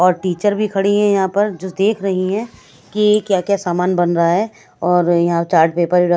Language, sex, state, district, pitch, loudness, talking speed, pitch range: Hindi, female, Punjab, Kapurthala, 185 Hz, -16 LUFS, 225 wpm, 175-205 Hz